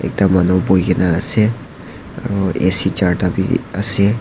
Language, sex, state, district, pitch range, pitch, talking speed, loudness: Nagamese, male, Nagaland, Dimapur, 90-100 Hz, 95 Hz, 130 wpm, -16 LUFS